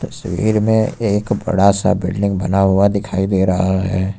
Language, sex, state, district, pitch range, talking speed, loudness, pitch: Hindi, male, Uttar Pradesh, Lucknow, 95-105 Hz, 185 wpm, -16 LUFS, 100 Hz